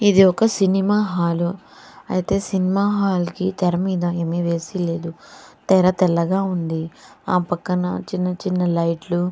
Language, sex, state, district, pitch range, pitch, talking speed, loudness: Telugu, female, Andhra Pradesh, Chittoor, 175-190 Hz, 180 Hz, 120 wpm, -20 LUFS